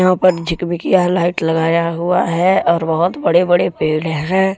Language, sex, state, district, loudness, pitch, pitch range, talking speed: Hindi, male, Jharkhand, Deoghar, -15 LUFS, 175 Hz, 165-180 Hz, 170 wpm